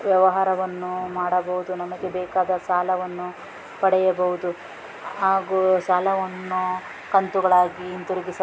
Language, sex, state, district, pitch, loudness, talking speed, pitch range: Kannada, female, Karnataka, Raichur, 185 Hz, -23 LUFS, 70 wpm, 180-185 Hz